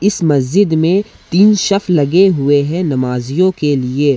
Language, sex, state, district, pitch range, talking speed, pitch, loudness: Hindi, male, Jharkhand, Ranchi, 140-195 Hz, 160 wpm, 165 Hz, -13 LUFS